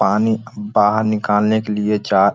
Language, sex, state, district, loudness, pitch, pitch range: Hindi, male, Jharkhand, Sahebganj, -17 LUFS, 105 Hz, 105-110 Hz